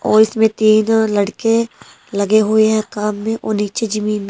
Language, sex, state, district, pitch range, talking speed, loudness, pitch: Hindi, female, Himachal Pradesh, Shimla, 210-220 Hz, 180 wpm, -16 LUFS, 215 Hz